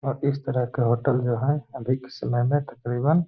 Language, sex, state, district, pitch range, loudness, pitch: Hindi, male, Bihar, Gaya, 120-140 Hz, -25 LUFS, 130 Hz